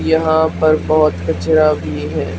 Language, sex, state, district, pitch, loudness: Hindi, female, Haryana, Charkhi Dadri, 155 Hz, -15 LUFS